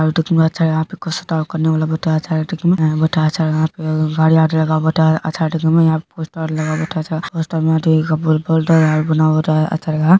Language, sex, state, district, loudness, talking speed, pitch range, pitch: Maithili, male, Bihar, Kishanganj, -16 LUFS, 205 wpm, 155-160 Hz, 160 Hz